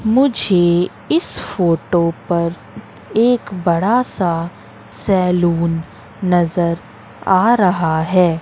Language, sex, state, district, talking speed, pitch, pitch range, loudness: Hindi, female, Madhya Pradesh, Katni, 85 wpm, 175 Hz, 170-195 Hz, -16 LUFS